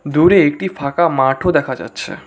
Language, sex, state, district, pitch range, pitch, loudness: Bengali, male, West Bengal, Cooch Behar, 140-175 Hz, 150 Hz, -15 LUFS